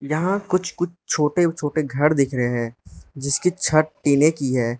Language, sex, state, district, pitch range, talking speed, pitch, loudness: Hindi, male, Arunachal Pradesh, Lower Dibang Valley, 130-170 Hz, 175 wpm, 150 Hz, -21 LUFS